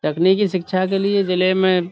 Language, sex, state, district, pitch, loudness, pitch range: Urdu, male, Uttar Pradesh, Budaun, 185 Hz, -18 LUFS, 185-195 Hz